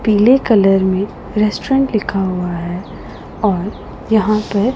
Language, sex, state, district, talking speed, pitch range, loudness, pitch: Hindi, female, Punjab, Pathankot, 125 wpm, 190-220 Hz, -16 LUFS, 210 Hz